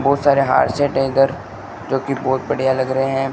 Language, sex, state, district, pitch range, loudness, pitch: Hindi, male, Rajasthan, Bikaner, 130-135 Hz, -18 LUFS, 135 Hz